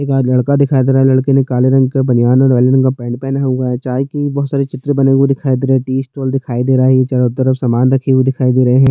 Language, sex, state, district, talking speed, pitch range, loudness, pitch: Hindi, male, Chhattisgarh, Jashpur, 305 wpm, 130-135 Hz, -13 LUFS, 130 Hz